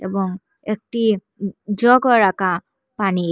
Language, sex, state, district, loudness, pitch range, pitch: Bengali, female, Assam, Hailakandi, -19 LUFS, 190-230 Hz, 205 Hz